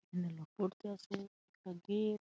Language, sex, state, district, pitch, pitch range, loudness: Bengali, male, West Bengal, Malda, 195 Hz, 180-205 Hz, -42 LUFS